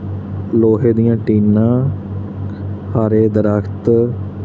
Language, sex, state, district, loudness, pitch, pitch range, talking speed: Punjabi, male, Punjab, Fazilka, -15 LUFS, 105 Hz, 100-115 Hz, 70 wpm